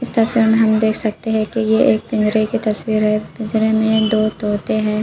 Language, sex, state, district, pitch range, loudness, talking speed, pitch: Hindi, female, Uttar Pradesh, Budaun, 215-220 Hz, -17 LUFS, 215 wpm, 220 Hz